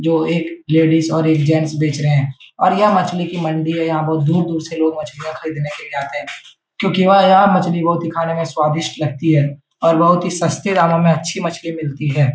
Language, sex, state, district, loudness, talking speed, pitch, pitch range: Hindi, male, Bihar, Jahanabad, -16 LUFS, 230 wpm, 160 Hz, 155-170 Hz